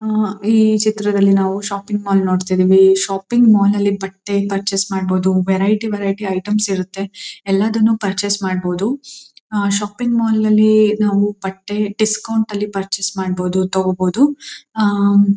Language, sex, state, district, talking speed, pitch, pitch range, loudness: Kannada, female, Karnataka, Mysore, 135 wpm, 200 Hz, 195-215 Hz, -16 LUFS